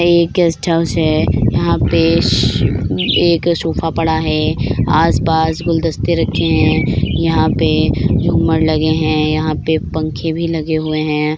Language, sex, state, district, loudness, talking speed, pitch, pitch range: Hindi, female, Bihar, Begusarai, -15 LUFS, 140 wpm, 160 Hz, 155-165 Hz